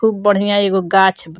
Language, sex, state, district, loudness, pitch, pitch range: Bhojpuri, female, Bihar, Muzaffarpur, -14 LUFS, 195 Hz, 190-205 Hz